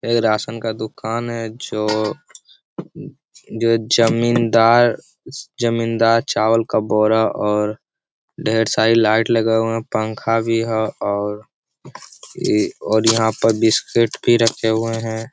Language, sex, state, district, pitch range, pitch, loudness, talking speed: Hindi, male, Bihar, Jamui, 110-115 Hz, 115 Hz, -18 LUFS, 115 wpm